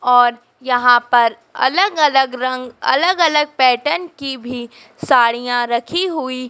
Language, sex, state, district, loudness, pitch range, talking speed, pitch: Hindi, female, Madhya Pradesh, Dhar, -16 LUFS, 245-295 Hz, 140 wpm, 255 Hz